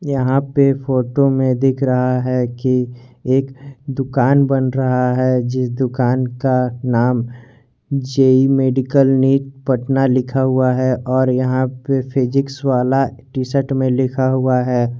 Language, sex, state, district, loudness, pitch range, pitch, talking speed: Hindi, male, Jharkhand, Garhwa, -17 LUFS, 125-135 Hz, 130 Hz, 140 wpm